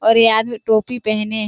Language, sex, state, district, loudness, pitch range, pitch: Hindi, female, Bihar, Kishanganj, -16 LUFS, 215-230 Hz, 220 Hz